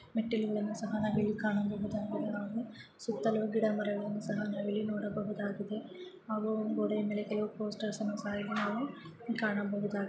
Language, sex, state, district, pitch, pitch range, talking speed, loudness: Kannada, female, Karnataka, Gulbarga, 210 Hz, 205-220 Hz, 120 wpm, -35 LUFS